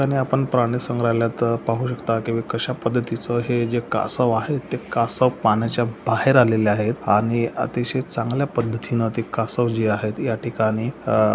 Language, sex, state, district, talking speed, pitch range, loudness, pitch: Marathi, male, Maharashtra, Solapur, 170 wpm, 115-125 Hz, -21 LUFS, 115 Hz